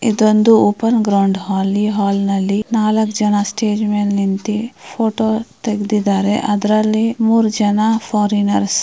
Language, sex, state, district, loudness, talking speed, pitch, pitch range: Kannada, female, Karnataka, Mysore, -15 LUFS, 130 wpm, 210 Hz, 205-220 Hz